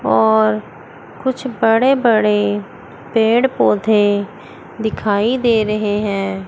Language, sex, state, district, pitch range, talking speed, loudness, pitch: Hindi, female, Chandigarh, Chandigarh, 205-230 Hz, 95 wpm, -16 LUFS, 210 Hz